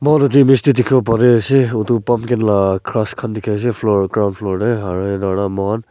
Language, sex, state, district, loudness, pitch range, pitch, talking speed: Nagamese, male, Nagaland, Kohima, -15 LUFS, 100-125 Hz, 110 Hz, 215 wpm